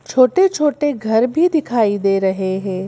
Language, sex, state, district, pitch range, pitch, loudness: Hindi, female, Madhya Pradesh, Bhopal, 195-295 Hz, 230 Hz, -16 LUFS